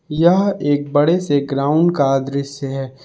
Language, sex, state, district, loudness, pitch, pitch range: Hindi, male, Jharkhand, Palamu, -17 LUFS, 145 Hz, 140-165 Hz